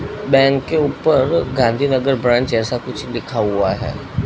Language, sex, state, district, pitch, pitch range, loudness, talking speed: Hindi, male, Gujarat, Gandhinagar, 130 Hz, 120-135 Hz, -17 LUFS, 140 wpm